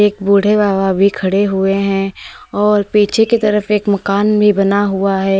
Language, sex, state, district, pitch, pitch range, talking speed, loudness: Hindi, female, Uttar Pradesh, Lalitpur, 200 Hz, 195-210 Hz, 180 wpm, -13 LUFS